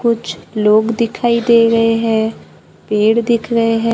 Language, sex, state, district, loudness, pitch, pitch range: Hindi, female, Maharashtra, Gondia, -14 LUFS, 230 Hz, 220-235 Hz